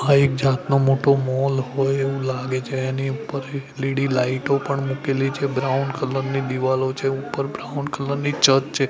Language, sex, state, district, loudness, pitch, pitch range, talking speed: Gujarati, male, Gujarat, Gandhinagar, -22 LUFS, 135 Hz, 130-140 Hz, 180 wpm